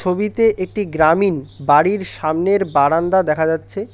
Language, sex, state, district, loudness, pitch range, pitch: Bengali, male, West Bengal, Alipurduar, -17 LUFS, 155-200 Hz, 180 Hz